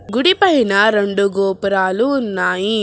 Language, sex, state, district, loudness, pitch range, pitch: Telugu, female, Telangana, Hyderabad, -15 LUFS, 195-240 Hz, 200 Hz